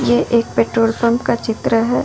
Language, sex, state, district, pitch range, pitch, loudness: Hindi, female, Jharkhand, Ranchi, 220-235 Hz, 230 Hz, -16 LUFS